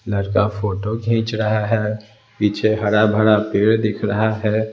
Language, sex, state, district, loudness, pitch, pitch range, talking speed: Hindi, male, Bihar, Patna, -18 LUFS, 110 Hz, 105-110 Hz, 150 wpm